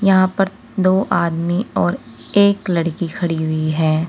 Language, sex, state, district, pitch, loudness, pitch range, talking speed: Hindi, female, Uttar Pradesh, Saharanpur, 175 Hz, -18 LUFS, 165-195 Hz, 145 wpm